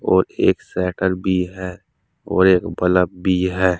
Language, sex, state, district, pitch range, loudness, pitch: Hindi, male, Uttar Pradesh, Saharanpur, 90-95 Hz, -19 LUFS, 90 Hz